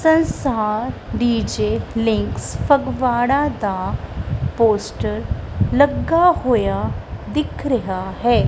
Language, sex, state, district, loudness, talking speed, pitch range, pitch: Punjabi, female, Punjab, Kapurthala, -19 LUFS, 70 wpm, 220-285 Hz, 240 Hz